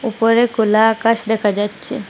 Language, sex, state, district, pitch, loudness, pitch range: Bengali, female, Assam, Hailakandi, 225 Hz, -16 LUFS, 210-230 Hz